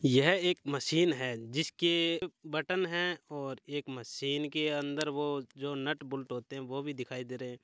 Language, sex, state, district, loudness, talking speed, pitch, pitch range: Hindi, male, Rajasthan, Churu, -33 LUFS, 190 wpm, 145 Hz, 135-160 Hz